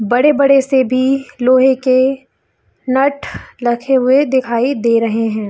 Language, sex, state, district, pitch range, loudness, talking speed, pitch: Hindi, female, Chhattisgarh, Bilaspur, 240-270 Hz, -14 LUFS, 130 wpm, 260 Hz